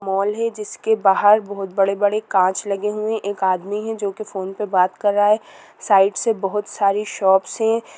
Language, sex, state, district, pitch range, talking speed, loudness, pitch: Hindi, female, Chhattisgarh, Sukma, 195-215 Hz, 190 wpm, -19 LUFS, 205 Hz